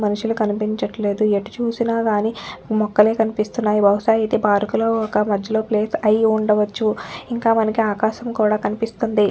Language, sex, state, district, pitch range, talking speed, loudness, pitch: Telugu, female, Telangana, Nalgonda, 210-225 Hz, 115 wpm, -19 LUFS, 215 Hz